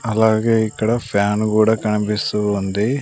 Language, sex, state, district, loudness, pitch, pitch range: Telugu, male, Andhra Pradesh, Sri Satya Sai, -18 LUFS, 110 Hz, 105-110 Hz